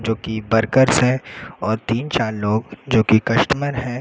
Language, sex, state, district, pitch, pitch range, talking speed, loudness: Hindi, male, Uttar Pradesh, Lucknow, 115 Hz, 110-130 Hz, 180 wpm, -19 LUFS